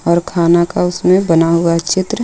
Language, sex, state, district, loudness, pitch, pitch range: Hindi, female, Jharkhand, Ranchi, -13 LUFS, 175 Hz, 170-185 Hz